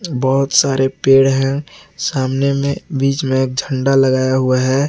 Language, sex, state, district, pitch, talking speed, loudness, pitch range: Hindi, male, Jharkhand, Garhwa, 135 Hz, 145 wpm, -15 LUFS, 130-140 Hz